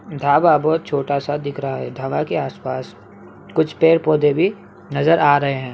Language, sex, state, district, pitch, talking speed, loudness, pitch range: Hindi, male, Bihar, Begusarai, 145 Hz, 180 wpm, -18 LUFS, 140-160 Hz